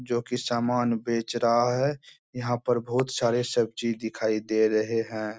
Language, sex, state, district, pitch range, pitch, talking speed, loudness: Hindi, male, Bihar, Bhagalpur, 110-125 Hz, 120 Hz, 165 wpm, -26 LUFS